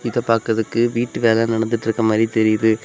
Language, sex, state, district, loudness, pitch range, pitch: Tamil, male, Tamil Nadu, Kanyakumari, -18 LUFS, 110-115 Hz, 115 Hz